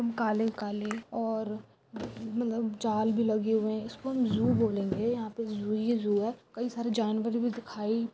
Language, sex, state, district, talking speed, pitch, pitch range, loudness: Hindi, female, Andhra Pradesh, Anantapur, 155 wpm, 225 Hz, 215-230 Hz, -31 LUFS